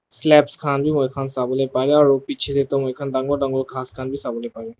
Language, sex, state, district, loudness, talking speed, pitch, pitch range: Nagamese, male, Nagaland, Dimapur, -19 LUFS, 240 wpm, 135 Hz, 130-140 Hz